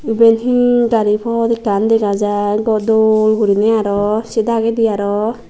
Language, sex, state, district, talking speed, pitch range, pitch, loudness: Chakma, female, Tripura, Dhalai, 140 wpm, 210-230 Hz, 220 Hz, -14 LUFS